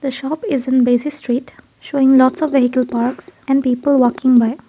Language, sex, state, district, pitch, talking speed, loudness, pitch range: English, female, Assam, Kamrup Metropolitan, 260 Hz, 190 wpm, -16 LUFS, 245-275 Hz